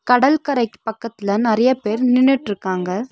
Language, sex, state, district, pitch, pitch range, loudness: Tamil, female, Tamil Nadu, Nilgiris, 230 Hz, 210-255 Hz, -18 LUFS